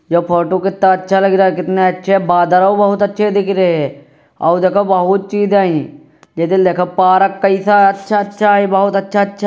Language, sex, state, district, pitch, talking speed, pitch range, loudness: Hindi, male, Uttar Pradesh, Jyotiba Phule Nagar, 195 Hz, 175 wpm, 180-200 Hz, -13 LUFS